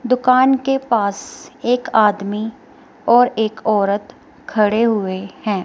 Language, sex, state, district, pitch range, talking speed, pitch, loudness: Hindi, female, Himachal Pradesh, Shimla, 205-255 Hz, 115 wpm, 220 Hz, -17 LUFS